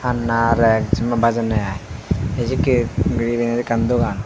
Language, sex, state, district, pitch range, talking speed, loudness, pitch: Chakma, male, Tripura, Unakoti, 110-120 Hz, 140 wpm, -19 LUFS, 115 Hz